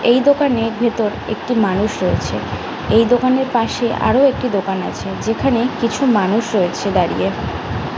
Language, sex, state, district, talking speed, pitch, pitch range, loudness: Bengali, female, West Bengal, Jhargram, 135 wpm, 235 Hz, 215-250 Hz, -17 LUFS